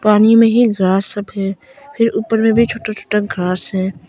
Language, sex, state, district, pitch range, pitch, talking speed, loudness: Hindi, female, Arunachal Pradesh, Longding, 195-230 Hz, 210 Hz, 190 wpm, -15 LUFS